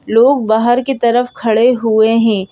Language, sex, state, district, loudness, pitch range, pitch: Hindi, female, Madhya Pradesh, Bhopal, -12 LUFS, 220-245 Hz, 235 Hz